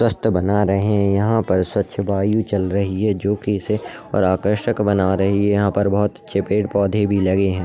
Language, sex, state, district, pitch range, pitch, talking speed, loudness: Hindi, male, Maharashtra, Solapur, 95-105 Hz, 100 Hz, 220 wpm, -19 LUFS